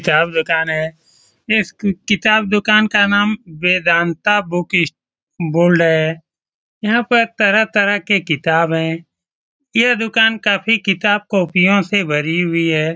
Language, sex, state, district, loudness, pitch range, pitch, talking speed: Hindi, male, Bihar, Saran, -15 LUFS, 165-210 Hz, 185 Hz, 140 wpm